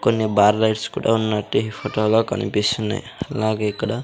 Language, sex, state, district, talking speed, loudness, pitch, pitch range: Telugu, male, Andhra Pradesh, Sri Satya Sai, 165 wpm, -20 LUFS, 110 Hz, 105-115 Hz